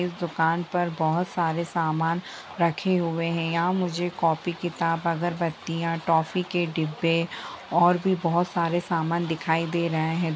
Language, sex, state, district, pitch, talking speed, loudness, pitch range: Hindi, female, Bihar, Lakhisarai, 170 Hz, 150 wpm, -25 LUFS, 165-175 Hz